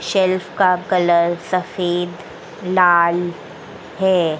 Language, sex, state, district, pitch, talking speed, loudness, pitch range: Hindi, female, Madhya Pradesh, Dhar, 180 Hz, 80 wpm, -17 LUFS, 175-185 Hz